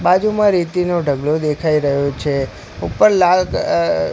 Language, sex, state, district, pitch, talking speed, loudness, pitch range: Gujarati, male, Gujarat, Gandhinagar, 155 Hz, 130 wpm, -16 LUFS, 140-180 Hz